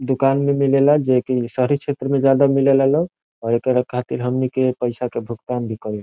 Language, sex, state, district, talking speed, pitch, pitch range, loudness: Bhojpuri, male, Bihar, Saran, 230 wpm, 130 Hz, 125-135 Hz, -19 LUFS